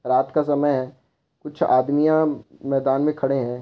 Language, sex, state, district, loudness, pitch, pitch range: Hindi, male, Rajasthan, Churu, -21 LUFS, 140 Hz, 130-150 Hz